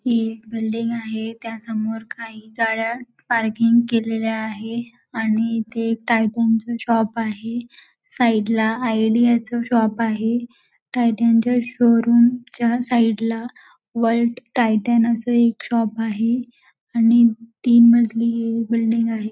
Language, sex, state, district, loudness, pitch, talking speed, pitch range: Marathi, female, Maharashtra, Dhule, -19 LUFS, 230 Hz, 120 wpm, 225-235 Hz